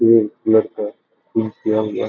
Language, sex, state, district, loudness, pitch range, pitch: Hindi, male, Bihar, Begusarai, -19 LUFS, 105-110 Hz, 110 Hz